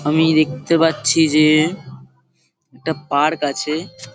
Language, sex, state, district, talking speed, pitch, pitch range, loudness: Bengali, male, West Bengal, Paschim Medinipur, 100 wpm, 155 Hz, 130-160 Hz, -17 LUFS